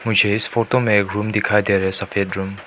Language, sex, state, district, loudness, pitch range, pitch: Hindi, male, Manipur, Imphal West, -17 LUFS, 100-110 Hz, 105 Hz